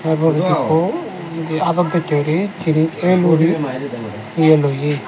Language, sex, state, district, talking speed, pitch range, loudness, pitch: Chakma, male, Tripura, Dhalai, 130 wpm, 150-170 Hz, -17 LUFS, 160 Hz